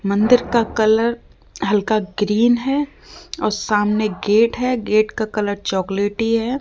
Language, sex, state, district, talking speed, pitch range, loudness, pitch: Hindi, female, Rajasthan, Jaipur, 135 wpm, 205-235 Hz, -18 LUFS, 215 Hz